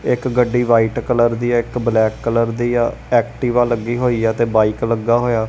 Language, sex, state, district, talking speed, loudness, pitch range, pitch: Punjabi, male, Punjab, Kapurthala, 195 wpm, -17 LUFS, 115-120 Hz, 120 Hz